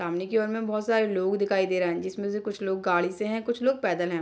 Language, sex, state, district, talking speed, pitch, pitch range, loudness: Hindi, female, Bihar, Darbhanga, 310 wpm, 200 Hz, 180-215 Hz, -27 LUFS